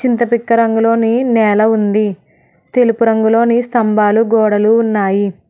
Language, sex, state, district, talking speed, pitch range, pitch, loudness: Telugu, female, Telangana, Hyderabad, 100 wpm, 215-235 Hz, 225 Hz, -13 LUFS